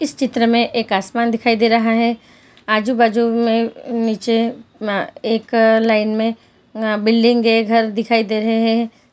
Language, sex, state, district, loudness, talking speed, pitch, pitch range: Hindi, female, Chhattisgarh, Bilaspur, -17 LUFS, 155 wpm, 230 Hz, 225-235 Hz